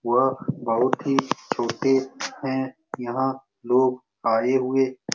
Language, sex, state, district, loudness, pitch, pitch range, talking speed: Hindi, male, Bihar, Saran, -24 LUFS, 130 Hz, 125-135 Hz, 115 wpm